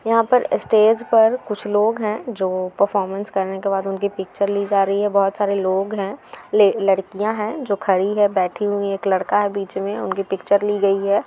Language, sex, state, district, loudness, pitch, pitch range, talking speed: Hindi, female, Bihar, Gaya, -19 LUFS, 200 Hz, 195-210 Hz, 215 wpm